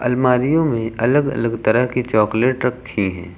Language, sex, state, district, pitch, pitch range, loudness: Hindi, male, Uttar Pradesh, Lucknow, 125 Hz, 110-125 Hz, -18 LUFS